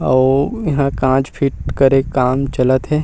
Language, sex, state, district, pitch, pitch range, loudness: Chhattisgarhi, male, Chhattisgarh, Rajnandgaon, 135 Hz, 130-140 Hz, -16 LUFS